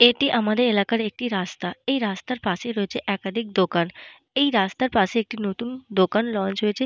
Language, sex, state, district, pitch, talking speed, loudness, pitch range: Bengali, female, Jharkhand, Jamtara, 220 Hz, 165 wpm, -23 LUFS, 195-245 Hz